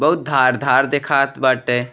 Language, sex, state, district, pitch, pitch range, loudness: Bhojpuri, male, Uttar Pradesh, Deoria, 135 Hz, 130-145 Hz, -16 LUFS